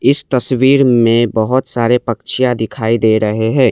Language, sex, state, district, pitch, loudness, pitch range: Hindi, male, Assam, Kamrup Metropolitan, 120 Hz, -13 LUFS, 115-130 Hz